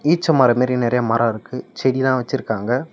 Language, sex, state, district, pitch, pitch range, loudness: Tamil, male, Tamil Nadu, Namakkal, 125 Hz, 120-135 Hz, -18 LUFS